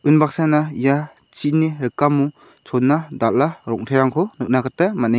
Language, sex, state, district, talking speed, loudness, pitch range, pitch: Garo, male, Meghalaya, South Garo Hills, 125 wpm, -19 LUFS, 130-155 Hz, 145 Hz